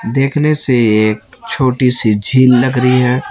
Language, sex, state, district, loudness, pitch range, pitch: Hindi, male, Chhattisgarh, Raipur, -12 LUFS, 115-130 Hz, 125 Hz